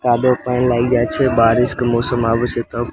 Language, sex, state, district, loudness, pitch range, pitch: Maithili, male, Bihar, Samastipur, -16 LUFS, 120-125 Hz, 120 Hz